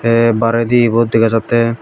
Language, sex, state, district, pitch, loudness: Chakma, male, Tripura, Dhalai, 115 Hz, -13 LUFS